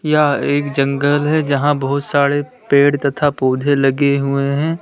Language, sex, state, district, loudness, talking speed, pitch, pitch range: Hindi, male, Uttar Pradesh, Lalitpur, -16 LUFS, 160 wpm, 145 Hz, 140-145 Hz